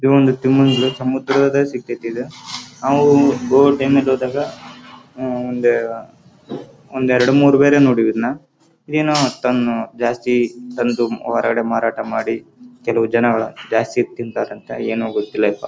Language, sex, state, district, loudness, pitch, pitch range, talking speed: Kannada, male, Karnataka, Raichur, -17 LUFS, 130 Hz, 120-140 Hz, 40 wpm